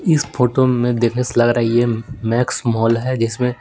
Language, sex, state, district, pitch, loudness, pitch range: Hindi, male, Bihar, Patna, 120 Hz, -17 LUFS, 115-125 Hz